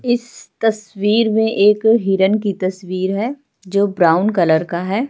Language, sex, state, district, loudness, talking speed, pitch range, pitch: Hindi, female, Uttar Pradesh, Jalaun, -17 LUFS, 155 wpm, 190-225 Hz, 205 Hz